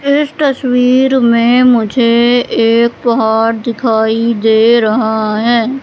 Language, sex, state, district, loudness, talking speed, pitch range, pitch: Hindi, female, Madhya Pradesh, Katni, -11 LUFS, 105 wpm, 225-250 Hz, 235 Hz